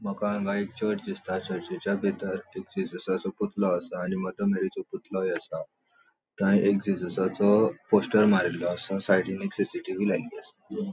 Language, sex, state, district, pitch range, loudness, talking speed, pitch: Konkani, male, Goa, North and South Goa, 95-115 Hz, -28 LUFS, 150 wpm, 100 Hz